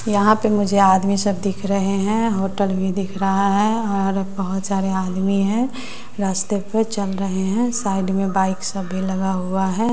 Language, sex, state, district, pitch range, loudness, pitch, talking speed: Hindi, female, Bihar, West Champaran, 190-205 Hz, -20 LUFS, 195 Hz, 185 wpm